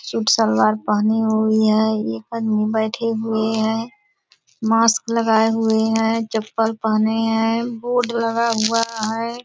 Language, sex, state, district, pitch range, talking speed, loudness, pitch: Hindi, female, Bihar, Purnia, 220-230 Hz, 140 wpm, -19 LUFS, 225 Hz